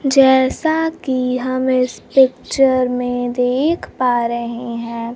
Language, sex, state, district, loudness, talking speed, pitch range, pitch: Hindi, female, Bihar, Kaimur, -17 LUFS, 115 wpm, 245-265 Hz, 255 Hz